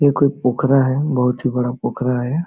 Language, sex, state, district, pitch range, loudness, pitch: Hindi, male, Jharkhand, Sahebganj, 125-140 Hz, -18 LUFS, 130 Hz